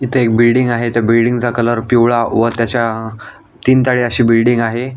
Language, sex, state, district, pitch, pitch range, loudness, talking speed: Marathi, male, Maharashtra, Aurangabad, 120 Hz, 115-120 Hz, -13 LUFS, 180 wpm